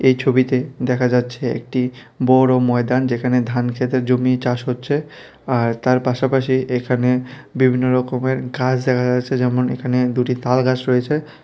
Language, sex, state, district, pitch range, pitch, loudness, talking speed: Bengali, male, Tripura, West Tripura, 125-130 Hz, 125 Hz, -18 LUFS, 145 wpm